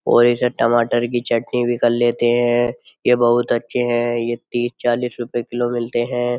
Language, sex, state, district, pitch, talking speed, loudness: Hindi, male, Uttar Pradesh, Jyotiba Phule Nagar, 120 Hz, 190 wpm, -19 LUFS